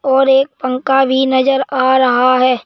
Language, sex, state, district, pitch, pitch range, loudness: Hindi, male, Madhya Pradesh, Bhopal, 265 Hz, 255-270 Hz, -13 LUFS